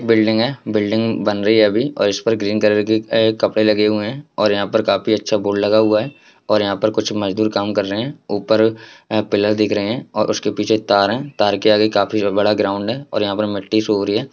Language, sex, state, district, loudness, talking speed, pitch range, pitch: Hindi, male, Bihar, Jahanabad, -17 LUFS, 245 wpm, 105-110 Hz, 105 Hz